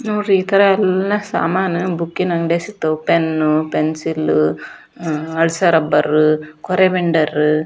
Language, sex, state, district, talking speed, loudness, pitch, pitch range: Kannada, female, Karnataka, Dharwad, 125 wpm, -16 LUFS, 165 Hz, 155-185 Hz